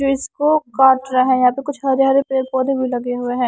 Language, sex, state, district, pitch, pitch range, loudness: Hindi, female, Punjab, Kapurthala, 265 Hz, 255-275 Hz, -17 LUFS